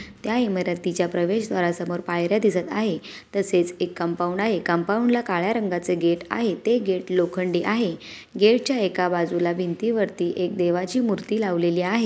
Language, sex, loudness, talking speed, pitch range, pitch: Marathi, female, -23 LUFS, 150 wpm, 175-215 Hz, 180 Hz